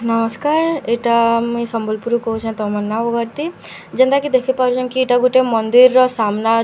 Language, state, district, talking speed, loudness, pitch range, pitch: Sambalpuri, Odisha, Sambalpur, 170 wpm, -16 LUFS, 225-255 Hz, 235 Hz